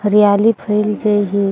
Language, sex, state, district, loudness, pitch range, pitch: Sadri, female, Chhattisgarh, Jashpur, -14 LUFS, 205-210 Hz, 210 Hz